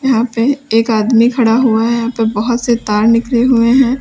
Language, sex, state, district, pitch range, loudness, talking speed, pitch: Hindi, female, Uttar Pradesh, Lalitpur, 225-245 Hz, -12 LUFS, 225 wpm, 235 Hz